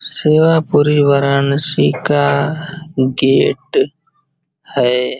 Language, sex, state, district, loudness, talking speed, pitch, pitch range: Hindi, male, Uttar Pradesh, Varanasi, -14 LUFS, 70 wpm, 145 Hz, 135-160 Hz